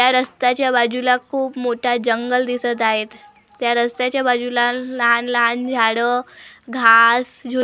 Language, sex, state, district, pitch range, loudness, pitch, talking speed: Marathi, female, Maharashtra, Gondia, 235-250 Hz, -17 LUFS, 245 Hz, 125 wpm